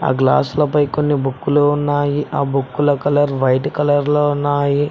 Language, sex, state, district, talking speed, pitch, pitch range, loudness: Telugu, male, Telangana, Mahabubabad, 145 wpm, 145 Hz, 140-145 Hz, -16 LUFS